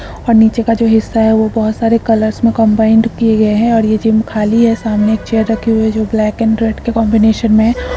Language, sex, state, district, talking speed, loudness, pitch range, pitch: Hindi, female, Karnataka, Belgaum, 255 wpm, -12 LUFS, 220-230 Hz, 220 Hz